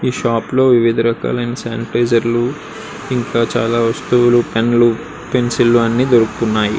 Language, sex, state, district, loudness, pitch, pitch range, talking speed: Telugu, male, Andhra Pradesh, Srikakulam, -15 LUFS, 120 Hz, 115-120 Hz, 140 wpm